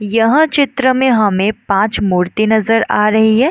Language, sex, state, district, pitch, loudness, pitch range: Hindi, female, Bihar, Madhepura, 220 Hz, -13 LUFS, 210-255 Hz